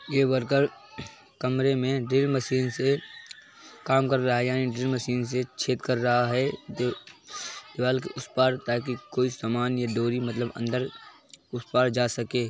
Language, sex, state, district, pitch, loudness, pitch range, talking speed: Hindi, male, Bihar, Gopalganj, 125 Hz, -27 LUFS, 120-130 Hz, 165 wpm